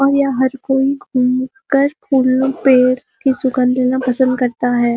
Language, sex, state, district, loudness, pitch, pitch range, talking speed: Hindi, female, Uttarakhand, Uttarkashi, -15 LUFS, 260 Hz, 255-270 Hz, 145 wpm